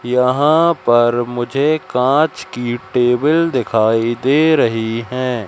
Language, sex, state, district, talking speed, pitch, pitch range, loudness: Hindi, male, Madhya Pradesh, Katni, 110 wpm, 125 Hz, 120-145 Hz, -15 LUFS